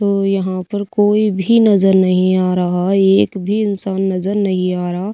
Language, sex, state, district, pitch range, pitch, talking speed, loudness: Hindi, female, Bihar, Kaimur, 185-205 Hz, 195 Hz, 185 wpm, -15 LUFS